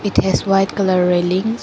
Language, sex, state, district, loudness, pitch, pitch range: English, female, Arunachal Pradesh, Lower Dibang Valley, -16 LUFS, 195 Hz, 180-205 Hz